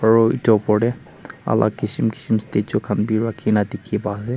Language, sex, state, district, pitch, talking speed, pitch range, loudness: Nagamese, male, Nagaland, Kohima, 110 Hz, 190 wpm, 105-115 Hz, -20 LUFS